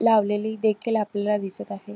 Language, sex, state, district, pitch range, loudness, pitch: Marathi, female, Maharashtra, Aurangabad, 195-220 Hz, -24 LUFS, 210 Hz